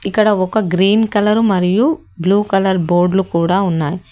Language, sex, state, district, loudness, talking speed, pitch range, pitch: Telugu, female, Telangana, Hyderabad, -15 LUFS, 145 wpm, 180-210 Hz, 195 Hz